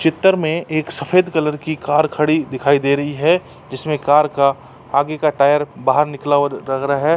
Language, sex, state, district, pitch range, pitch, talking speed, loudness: Hindi, male, Uttar Pradesh, Jalaun, 140-155 Hz, 150 Hz, 200 wpm, -17 LUFS